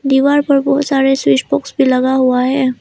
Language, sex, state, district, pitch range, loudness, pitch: Hindi, female, Arunachal Pradesh, Lower Dibang Valley, 255-275 Hz, -13 LUFS, 270 Hz